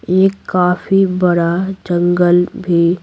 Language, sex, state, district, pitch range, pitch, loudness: Hindi, female, Bihar, Patna, 175-190 Hz, 180 Hz, -14 LUFS